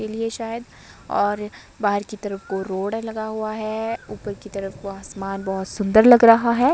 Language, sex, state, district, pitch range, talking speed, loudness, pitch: Hindi, female, Himachal Pradesh, Shimla, 195-225 Hz, 185 wpm, -21 LUFS, 215 Hz